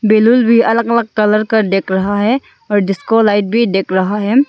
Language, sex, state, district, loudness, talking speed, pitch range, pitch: Hindi, female, Arunachal Pradesh, Longding, -13 LUFS, 215 wpm, 200-230 Hz, 215 Hz